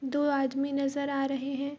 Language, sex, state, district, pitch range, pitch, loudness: Hindi, female, Bihar, Saharsa, 275-280 Hz, 275 Hz, -30 LUFS